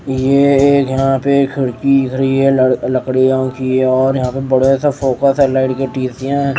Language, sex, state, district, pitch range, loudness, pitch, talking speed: Hindi, male, Odisha, Nuapada, 130-135 Hz, -14 LUFS, 135 Hz, 165 wpm